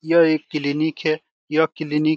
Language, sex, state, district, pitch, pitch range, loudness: Hindi, male, Bihar, Saran, 155 Hz, 150-160 Hz, -21 LUFS